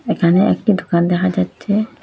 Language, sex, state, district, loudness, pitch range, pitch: Bengali, female, Assam, Hailakandi, -16 LUFS, 170-210 Hz, 180 Hz